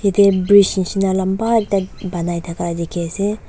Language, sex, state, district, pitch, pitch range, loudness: Nagamese, female, Nagaland, Dimapur, 190 Hz, 175-200 Hz, -17 LUFS